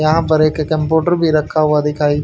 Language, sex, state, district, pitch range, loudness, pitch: Hindi, male, Haryana, Rohtak, 150-160 Hz, -15 LUFS, 155 Hz